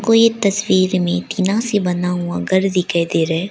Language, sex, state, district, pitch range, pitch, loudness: Hindi, female, Arunachal Pradesh, Lower Dibang Valley, 175-200 Hz, 185 Hz, -17 LUFS